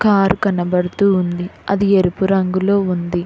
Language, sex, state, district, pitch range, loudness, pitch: Telugu, female, Telangana, Hyderabad, 180-195 Hz, -16 LUFS, 190 Hz